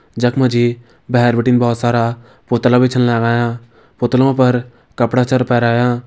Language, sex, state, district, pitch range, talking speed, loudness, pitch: Hindi, male, Uttarakhand, Tehri Garhwal, 120-125 Hz, 160 wpm, -15 LUFS, 120 Hz